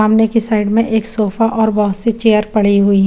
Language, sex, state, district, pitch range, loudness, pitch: Hindi, female, Chandigarh, Chandigarh, 210-225 Hz, -13 LUFS, 215 Hz